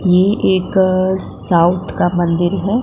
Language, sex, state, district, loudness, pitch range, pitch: Hindi, female, Gujarat, Gandhinagar, -14 LUFS, 175-190 Hz, 185 Hz